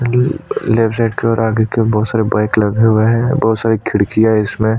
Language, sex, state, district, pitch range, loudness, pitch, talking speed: Hindi, male, Chhattisgarh, Sukma, 110-115 Hz, -14 LUFS, 110 Hz, 225 wpm